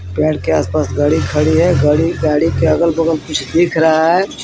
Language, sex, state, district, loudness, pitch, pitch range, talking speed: Hindi, male, Jharkhand, Garhwa, -14 LUFS, 160 Hz, 150-165 Hz, 190 wpm